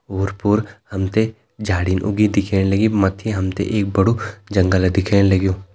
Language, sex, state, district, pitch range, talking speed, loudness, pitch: Hindi, male, Uttarakhand, Tehri Garhwal, 95-105 Hz, 145 wpm, -18 LUFS, 100 Hz